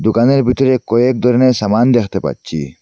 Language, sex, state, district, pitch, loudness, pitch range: Bengali, male, Assam, Hailakandi, 120 Hz, -13 LUFS, 105-125 Hz